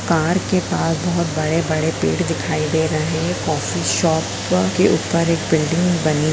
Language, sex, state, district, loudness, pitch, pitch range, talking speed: Hindi, female, Bihar, Jamui, -18 LUFS, 160 Hz, 155-170 Hz, 160 wpm